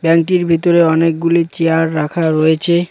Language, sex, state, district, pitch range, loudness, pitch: Bengali, male, West Bengal, Cooch Behar, 160-170 Hz, -14 LUFS, 165 Hz